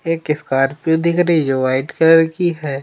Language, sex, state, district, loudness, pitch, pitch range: Hindi, female, Madhya Pradesh, Umaria, -16 LUFS, 160 Hz, 135-165 Hz